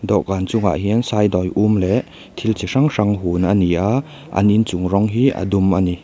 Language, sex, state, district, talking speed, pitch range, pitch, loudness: Mizo, male, Mizoram, Aizawl, 240 wpm, 95-110 Hz, 100 Hz, -18 LUFS